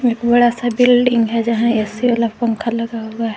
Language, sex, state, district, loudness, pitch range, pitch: Hindi, female, Jharkhand, Garhwa, -16 LUFS, 230-240 Hz, 235 Hz